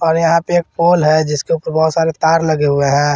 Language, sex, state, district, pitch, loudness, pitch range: Hindi, male, Jharkhand, Garhwa, 160 Hz, -14 LUFS, 155-165 Hz